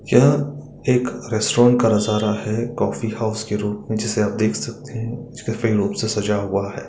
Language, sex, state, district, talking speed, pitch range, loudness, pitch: Hindi, male, Bihar, Gaya, 155 wpm, 105-120 Hz, -20 LUFS, 110 Hz